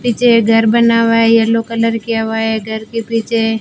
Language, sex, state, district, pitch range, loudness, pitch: Hindi, female, Rajasthan, Bikaner, 225-230 Hz, -13 LUFS, 230 Hz